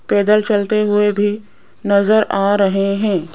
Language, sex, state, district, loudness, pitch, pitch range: Hindi, female, Rajasthan, Jaipur, -15 LUFS, 205 Hz, 200-210 Hz